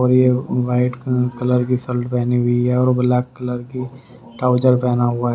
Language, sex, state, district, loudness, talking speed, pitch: Hindi, male, Haryana, Rohtak, -18 LUFS, 200 wpm, 125 Hz